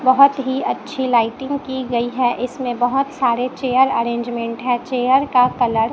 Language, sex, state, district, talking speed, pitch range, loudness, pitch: Hindi, female, Chhattisgarh, Raipur, 170 wpm, 240-265 Hz, -18 LUFS, 250 Hz